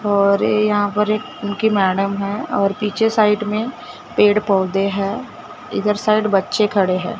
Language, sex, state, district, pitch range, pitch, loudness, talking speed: Hindi, female, Maharashtra, Gondia, 200-215 Hz, 205 Hz, -18 LUFS, 165 wpm